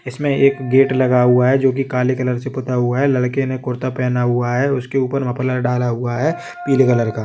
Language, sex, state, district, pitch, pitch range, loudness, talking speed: Hindi, male, Jharkhand, Jamtara, 130 Hz, 125-135 Hz, -17 LUFS, 250 wpm